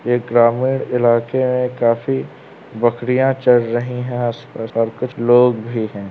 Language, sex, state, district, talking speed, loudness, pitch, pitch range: Hindi, male, Uttar Pradesh, Varanasi, 145 wpm, -17 LUFS, 120 Hz, 115-125 Hz